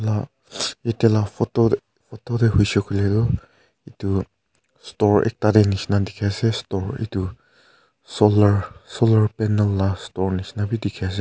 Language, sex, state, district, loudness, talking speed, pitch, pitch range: Nagamese, male, Nagaland, Kohima, -21 LUFS, 145 wpm, 105 Hz, 100-110 Hz